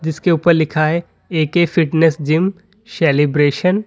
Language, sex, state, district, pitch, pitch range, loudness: Hindi, male, Uttar Pradesh, Lalitpur, 165 Hz, 155-180 Hz, -16 LUFS